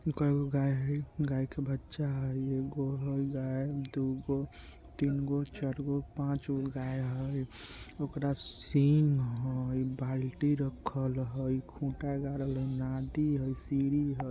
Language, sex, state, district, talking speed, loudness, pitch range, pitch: Maithili, male, Bihar, Muzaffarpur, 120 wpm, -34 LUFS, 130-140 Hz, 135 Hz